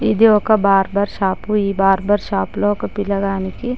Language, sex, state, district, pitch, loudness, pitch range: Telugu, female, Andhra Pradesh, Chittoor, 200 Hz, -17 LUFS, 195-210 Hz